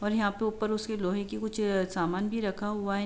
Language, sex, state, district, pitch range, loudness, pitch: Hindi, female, Uttar Pradesh, Jalaun, 195-215 Hz, -31 LUFS, 205 Hz